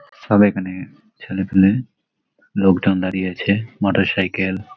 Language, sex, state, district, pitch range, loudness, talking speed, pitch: Bengali, male, West Bengal, Malda, 95-105 Hz, -18 LUFS, 100 wpm, 95 Hz